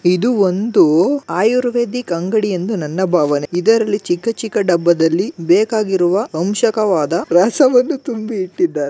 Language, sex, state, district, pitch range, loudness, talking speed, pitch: Kannada, male, Karnataka, Gulbarga, 175-225 Hz, -15 LUFS, 115 wpm, 200 Hz